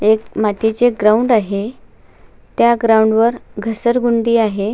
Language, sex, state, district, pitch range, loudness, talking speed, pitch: Marathi, female, Maharashtra, Sindhudurg, 215-235 Hz, -15 LUFS, 115 wpm, 225 Hz